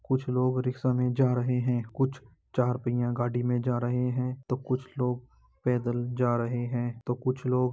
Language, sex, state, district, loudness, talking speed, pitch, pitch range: Hindi, male, Uttar Pradesh, Jalaun, -29 LUFS, 200 wpm, 125 Hz, 120-125 Hz